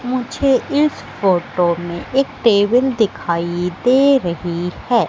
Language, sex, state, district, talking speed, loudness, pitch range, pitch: Hindi, female, Madhya Pradesh, Katni, 115 wpm, -17 LUFS, 175-255 Hz, 220 Hz